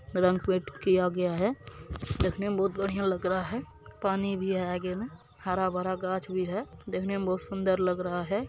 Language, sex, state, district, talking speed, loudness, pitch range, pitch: Maithili, male, Bihar, Supaul, 200 wpm, -30 LUFS, 185-195 Hz, 185 Hz